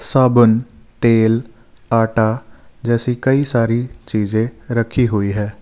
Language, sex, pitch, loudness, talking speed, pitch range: Hindi, male, 115 Hz, -17 LUFS, 105 wpm, 110-120 Hz